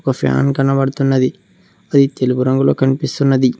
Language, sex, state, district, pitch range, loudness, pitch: Telugu, male, Telangana, Mahabubabad, 130-140 Hz, -15 LUFS, 135 Hz